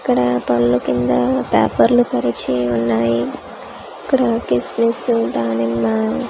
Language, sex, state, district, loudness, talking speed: Telugu, female, Andhra Pradesh, Manyam, -17 LUFS, 95 wpm